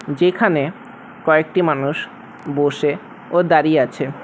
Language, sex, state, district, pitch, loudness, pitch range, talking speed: Bengali, male, West Bengal, Alipurduar, 155 Hz, -18 LUFS, 145-205 Hz, 100 wpm